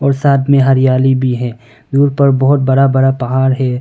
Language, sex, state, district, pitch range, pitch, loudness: Hindi, male, Arunachal Pradesh, Longding, 130-140 Hz, 135 Hz, -12 LUFS